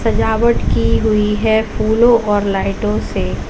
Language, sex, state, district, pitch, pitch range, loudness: Hindi, female, Uttar Pradesh, Lalitpur, 210 Hz, 195-220 Hz, -15 LUFS